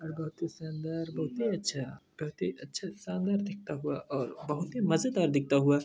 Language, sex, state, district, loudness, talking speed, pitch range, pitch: Hindi, male, Chhattisgarh, Sarguja, -33 LUFS, 145 wpm, 150-195 Hz, 160 Hz